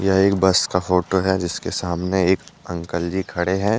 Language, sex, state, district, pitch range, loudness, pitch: Hindi, male, Jharkhand, Deoghar, 90-95 Hz, -20 LUFS, 95 Hz